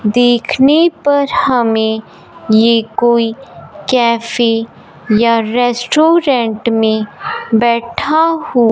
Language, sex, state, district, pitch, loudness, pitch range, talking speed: Hindi, male, Punjab, Fazilka, 235 Hz, -13 LUFS, 220-255 Hz, 75 wpm